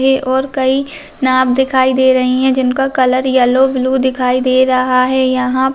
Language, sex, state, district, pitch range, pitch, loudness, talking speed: Hindi, female, Bihar, Saharsa, 255-265 Hz, 260 Hz, -13 LUFS, 185 wpm